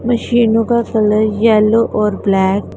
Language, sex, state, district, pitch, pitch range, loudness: Hindi, male, Punjab, Pathankot, 220 Hz, 210-230 Hz, -13 LUFS